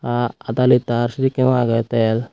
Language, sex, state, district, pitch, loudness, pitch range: Chakma, female, Tripura, West Tripura, 120 Hz, -18 LUFS, 115-125 Hz